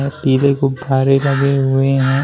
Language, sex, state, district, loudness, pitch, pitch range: Hindi, male, Uttar Pradesh, Shamli, -15 LUFS, 135 Hz, 135-140 Hz